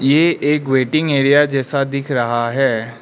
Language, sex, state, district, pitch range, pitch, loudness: Hindi, male, Arunachal Pradesh, Lower Dibang Valley, 130-145 Hz, 135 Hz, -16 LUFS